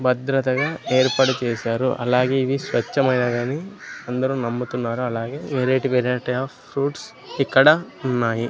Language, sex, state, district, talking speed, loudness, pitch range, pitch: Telugu, male, Andhra Pradesh, Sri Satya Sai, 105 wpm, -21 LUFS, 125-135 Hz, 130 Hz